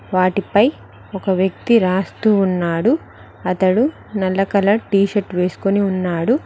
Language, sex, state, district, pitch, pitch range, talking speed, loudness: Telugu, female, Telangana, Mahabubabad, 195 Hz, 185-210 Hz, 110 wpm, -17 LUFS